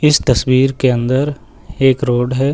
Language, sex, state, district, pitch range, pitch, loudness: Hindi, male, Uttar Pradesh, Lucknow, 125-140 Hz, 130 Hz, -14 LUFS